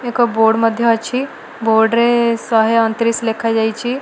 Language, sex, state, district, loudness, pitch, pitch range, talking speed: Odia, female, Odisha, Malkangiri, -15 LUFS, 230 Hz, 225-235 Hz, 165 wpm